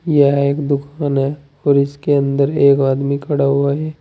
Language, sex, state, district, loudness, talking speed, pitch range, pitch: Hindi, male, Uttar Pradesh, Saharanpur, -16 LUFS, 180 wpm, 140-145 Hz, 140 Hz